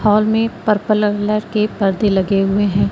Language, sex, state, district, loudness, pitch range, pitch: Hindi, female, Madhya Pradesh, Katni, -16 LUFS, 200-215 Hz, 210 Hz